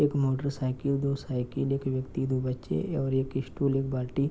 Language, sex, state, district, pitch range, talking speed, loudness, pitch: Hindi, male, Bihar, Gopalganj, 130-140 Hz, 210 wpm, -30 LUFS, 135 Hz